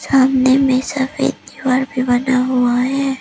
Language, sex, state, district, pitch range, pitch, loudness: Hindi, female, Arunachal Pradesh, Lower Dibang Valley, 255-270 Hz, 260 Hz, -16 LUFS